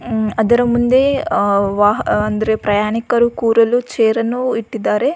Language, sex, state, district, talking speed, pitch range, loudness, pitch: Kannada, female, Karnataka, Belgaum, 95 wpm, 215-240 Hz, -15 LUFS, 225 Hz